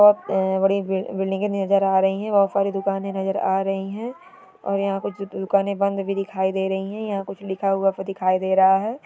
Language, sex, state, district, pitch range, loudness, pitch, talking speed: Hindi, female, Bihar, Sitamarhi, 190-200 Hz, -22 LUFS, 195 Hz, 225 wpm